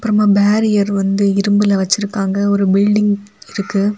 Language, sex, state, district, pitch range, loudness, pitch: Tamil, female, Tamil Nadu, Kanyakumari, 200-205 Hz, -15 LUFS, 200 Hz